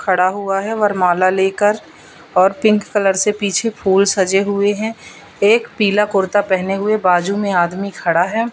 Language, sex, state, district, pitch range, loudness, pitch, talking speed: Hindi, female, Madhya Pradesh, Katni, 190-210 Hz, -16 LUFS, 200 Hz, 170 wpm